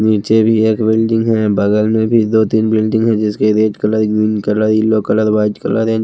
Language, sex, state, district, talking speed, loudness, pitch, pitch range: Hindi, male, Himachal Pradesh, Shimla, 230 wpm, -13 LUFS, 110 Hz, 105-110 Hz